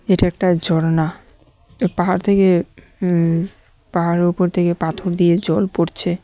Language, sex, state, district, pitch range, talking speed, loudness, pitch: Bengali, male, Tripura, West Tripura, 170-185 Hz, 125 wpm, -18 LUFS, 175 Hz